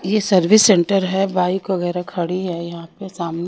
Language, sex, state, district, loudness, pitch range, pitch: Hindi, female, Haryana, Rohtak, -17 LUFS, 175-195 Hz, 185 Hz